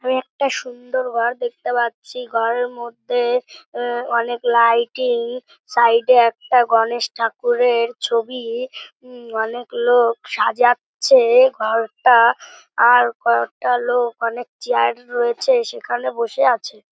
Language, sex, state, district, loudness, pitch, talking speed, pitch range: Bengali, male, West Bengal, North 24 Parganas, -18 LUFS, 245 Hz, 115 wpm, 235-250 Hz